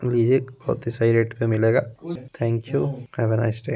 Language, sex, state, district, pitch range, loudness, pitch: Hindi, male, Bihar, Begusarai, 115-130 Hz, -23 LUFS, 115 Hz